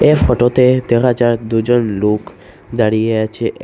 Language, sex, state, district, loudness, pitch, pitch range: Bengali, male, Assam, Hailakandi, -14 LUFS, 115 Hz, 110-120 Hz